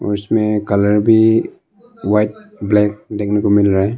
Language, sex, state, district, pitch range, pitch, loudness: Hindi, male, Arunachal Pradesh, Longding, 105-110 Hz, 105 Hz, -15 LUFS